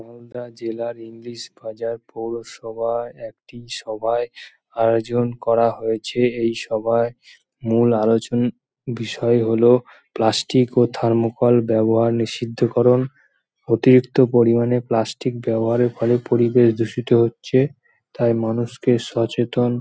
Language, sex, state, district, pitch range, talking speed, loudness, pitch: Bengali, male, West Bengal, Malda, 115-120 Hz, 95 wpm, -19 LUFS, 120 Hz